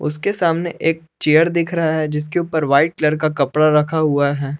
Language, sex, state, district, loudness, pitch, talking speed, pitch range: Hindi, male, Jharkhand, Palamu, -17 LUFS, 155 Hz, 210 wpm, 150-165 Hz